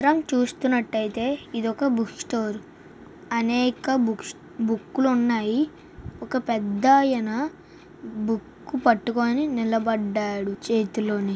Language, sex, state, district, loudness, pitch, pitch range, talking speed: Telugu, female, Andhra Pradesh, Visakhapatnam, -24 LUFS, 235 Hz, 220-260 Hz, 95 wpm